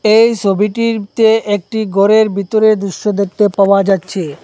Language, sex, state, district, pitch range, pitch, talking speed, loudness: Bengali, male, Assam, Hailakandi, 195-220 Hz, 210 Hz, 120 wpm, -13 LUFS